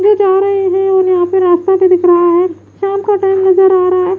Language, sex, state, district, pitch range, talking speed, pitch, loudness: Hindi, female, Bihar, West Champaran, 365-390 Hz, 260 wpm, 380 Hz, -11 LUFS